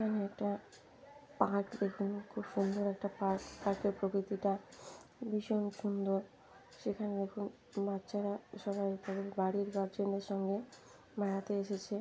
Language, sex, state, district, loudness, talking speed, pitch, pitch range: Bengali, female, West Bengal, Jhargram, -38 LUFS, 120 wpm, 200 Hz, 195-205 Hz